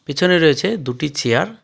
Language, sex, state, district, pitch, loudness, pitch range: Bengali, male, West Bengal, Darjeeling, 150 Hz, -17 LUFS, 135-180 Hz